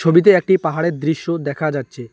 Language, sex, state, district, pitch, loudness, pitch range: Bengali, male, West Bengal, Alipurduar, 160 Hz, -17 LUFS, 145-170 Hz